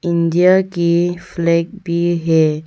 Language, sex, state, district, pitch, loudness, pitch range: Hindi, female, Arunachal Pradesh, Longding, 170 Hz, -16 LUFS, 170-175 Hz